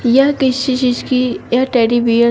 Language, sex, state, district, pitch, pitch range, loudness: Hindi, female, Uttar Pradesh, Shamli, 250 Hz, 240-260 Hz, -14 LUFS